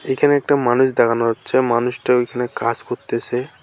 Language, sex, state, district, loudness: Bengali, male, West Bengal, Alipurduar, -18 LUFS